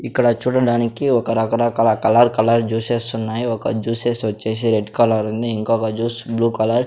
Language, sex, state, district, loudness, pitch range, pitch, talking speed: Telugu, male, Andhra Pradesh, Sri Satya Sai, -18 LUFS, 110-120 Hz, 115 Hz, 175 wpm